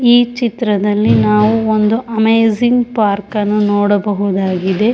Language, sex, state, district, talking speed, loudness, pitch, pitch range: Kannada, female, Karnataka, Shimoga, 95 wpm, -13 LUFS, 210 Hz, 205-225 Hz